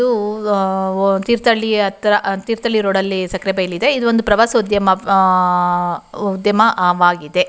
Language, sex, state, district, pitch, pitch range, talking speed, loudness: Kannada, female, Karnataka, Shimoga, 195 Hz, 190-220 Hz, 130 wpm, -15 LUFS